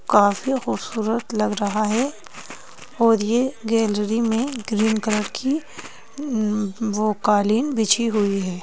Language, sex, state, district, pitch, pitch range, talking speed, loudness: Hindi, female, Madhya Pradesh, Bhopal, 220 Hz, 210-235 Hz, 125 wpm, -21 LUFS